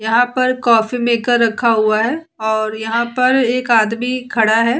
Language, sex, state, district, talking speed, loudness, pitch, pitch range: Hindi, female, Uttar Pradesh, Jalaun, 175 wpm, -15 LUFS, 235 Hz, 220-250 Hz